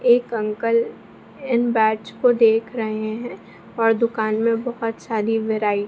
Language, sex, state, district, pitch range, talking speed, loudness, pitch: Hindi, female, Bihar, Begusarai, 220-235 Hz, 155 wpm, -21 LUFS, 225 Hz